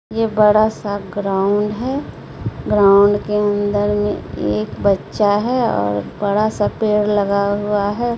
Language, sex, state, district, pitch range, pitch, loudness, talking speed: Hindi, female, Bihar, Katihar, 200-210 Hz, 205 Hz, -17 LUFS, 140 wpm